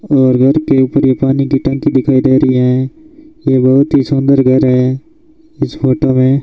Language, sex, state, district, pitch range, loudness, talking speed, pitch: Hindi, male, Rajasthan, Bikaner, 130-140 Hz, -11 LUFS, 205 wpm, 135 Hz